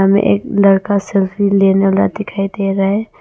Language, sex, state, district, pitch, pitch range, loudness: Hindi, female, Arunachal Pradesh, Longding, 195 Hz, 195-200 Hz, -14 LUFS